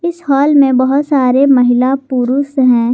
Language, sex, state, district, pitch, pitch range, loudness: Hindi, female, Jharkhand, Garhwa, 270 Hz, 255-280 Hz, -11 LUFS